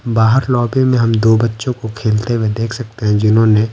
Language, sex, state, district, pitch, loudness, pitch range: Hindi, male, Bihar, Patna, 115 Hz, -14 LUFS, 110-120 Hz